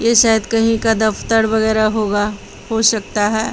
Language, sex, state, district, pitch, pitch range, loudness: Hindi, female, Bihar, Patna, 220 Hz, 215-225 Hz, -16 LUFS